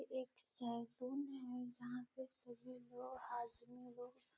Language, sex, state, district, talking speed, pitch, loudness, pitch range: Hindi, female, Bihar, Gaya, 135 wpm, 250 Hz, -50 LUFS, 245-255 Hz